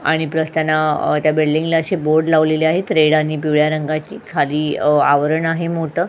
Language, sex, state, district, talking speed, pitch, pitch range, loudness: Marathi, female, Goa, North and South Goa, 155 wpm, 155 Hz, 155-160 Hz, -17 LUFS